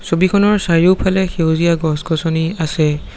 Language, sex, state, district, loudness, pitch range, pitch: Assamese, male, Assam, Sonitpur, -15 LUFS, 160-185 Hz, 165 Hz